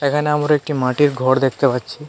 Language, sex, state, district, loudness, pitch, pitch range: Bengali, male, Tripura, West Tripura, -17 LUFS, 140 Hz, 130-150 Hz